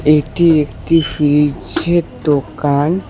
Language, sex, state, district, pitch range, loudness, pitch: Bengali, male, West Bengal, Alipurduar, 145-165 Hz, -15 LUFS, 150 Hz